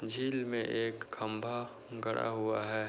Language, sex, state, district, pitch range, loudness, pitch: Hindi, male, Uttar Pradesh, Budaun, 110-120 Hz, -36 LUFS, 115 Hz